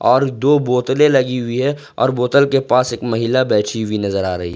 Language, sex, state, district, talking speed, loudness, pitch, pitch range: Hindi, male, Jharkhand, Ranchi, 225 wpm, -16 LUFS, 125 Hz, 115-135 Hz